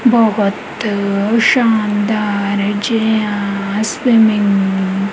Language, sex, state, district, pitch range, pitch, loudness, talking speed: Punjabi, female, Punjab, Kapurthala, 200-220 Hz, 210 Hz, -14 LUFS, 60 wpm